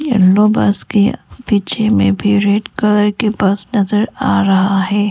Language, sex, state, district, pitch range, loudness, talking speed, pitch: Hindi, female, Arunachal Pradesh, Lower Dibang Valley, 195-210 Hz, -14 LUFS, 165 wpm, 205 Hz